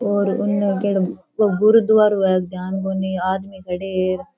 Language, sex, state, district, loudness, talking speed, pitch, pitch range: Rajasthani, female, Rajasthan, Churu, -19 LUFS, 150 wpm, 195 Hz, 185-205 Hz